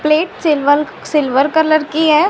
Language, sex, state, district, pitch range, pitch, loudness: Hindi, female, Haryana, Rohtak, 295-315 Hz, 305 Hz, -14 LUFS